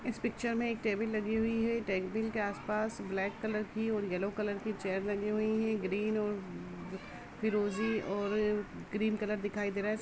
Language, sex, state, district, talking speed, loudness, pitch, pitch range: Hindi, female, Uttar Pradesh, Jalaun, 190 wpm, -35 LUFS, 215 Hz, 205-220 Hz